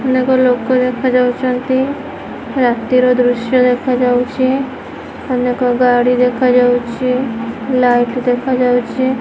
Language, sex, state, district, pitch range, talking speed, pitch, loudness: Odia, female, Odisha, Khordha, 245-255 Hz, 100 wpm, 250 Hz, -14 LUFS